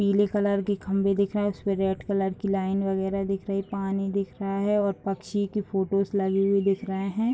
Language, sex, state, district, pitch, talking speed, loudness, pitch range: Hindi, female, Bihar, Vaishali, 195 Hz, 235 wpm, -26 LUFS, 195-200 Hz